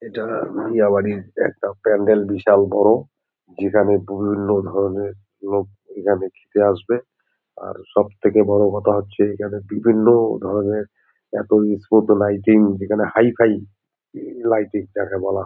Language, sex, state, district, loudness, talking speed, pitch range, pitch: Bengali, male, West Bengal, Jalpaiguri, -18 LUFS, 135 wpm, 100-105 Hz, 105 Hz